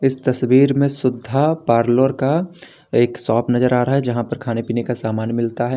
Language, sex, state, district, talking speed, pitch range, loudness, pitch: Hindi, male, Uttar Pradesh, Lalitpur, 210 wpm, 120-135 Hz, -18 LUFS, 125 Hz